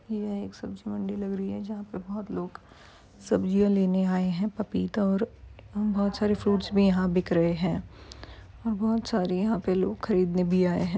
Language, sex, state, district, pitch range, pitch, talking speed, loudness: Hindi, female, Uttar Pradesh, Varanasi, 185-210 Hz, 200 Hz, 190 wpm, -27 LUFS